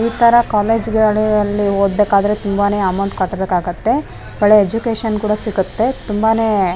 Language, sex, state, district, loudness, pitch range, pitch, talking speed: Kannada, female, Karnataka, Raichur, -15 LUFS, 200-220 Hz, 210 Hz, 140 wpm